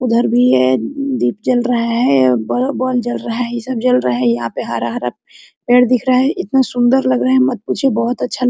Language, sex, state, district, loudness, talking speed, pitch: Hindi, female, Jharkhand, Sahebganj, -15 LUFS, 260 wpm, 245 Hz